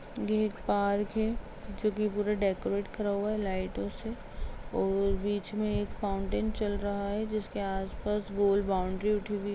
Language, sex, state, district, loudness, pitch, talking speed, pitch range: Hindi, female, Bihar, Begusarai, -32 LUFS, 205 Hz, 175 wpm, 200-210 Hz